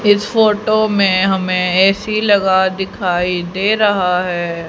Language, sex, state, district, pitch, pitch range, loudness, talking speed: Hindi, female, Haryana, Rohtak, 190 Hz, 180-210 Hz, -14 LUFS, 130 wpm